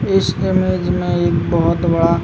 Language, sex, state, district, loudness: Hindi, male, Uttar Pradesh, Muzaffarnagar, -16 LUFS